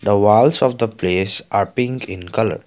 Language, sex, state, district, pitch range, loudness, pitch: English, male, Assam, Kamrup Metropolitan, 95-125 Hz, -17 LUFS, 105 Hz